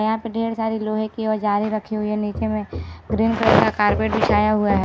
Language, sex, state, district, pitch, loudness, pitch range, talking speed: Hindi, female, Chhattisgarh, Rajnandgaon, 215 Hz, -20 LUFS, 210-220 Hz, 235 wpm